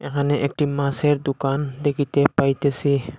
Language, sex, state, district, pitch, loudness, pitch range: Bengali, male, Assam, Hailakandi, 140 Hz, -21 LUFS, 140-145 Hz